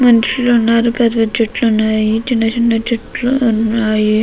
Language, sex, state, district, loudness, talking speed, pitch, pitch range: Telugu, female, Andhra Pradesh, Krishna, -14 LUFS, 140 wpm, 230 Hz, 225-235 Hz